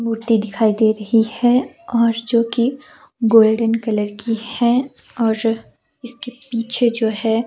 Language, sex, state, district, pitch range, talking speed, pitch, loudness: Hindi, female, Himachal Pradesh, Shimla, 225-240 Hz, 130 wpm, 230 Hz, -18 LUFS